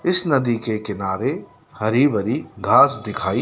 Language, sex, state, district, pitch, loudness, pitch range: Hindi, male, Madhya Pradesh, Dhar, 115 Hz, -20 LUFS, 105-140 Hz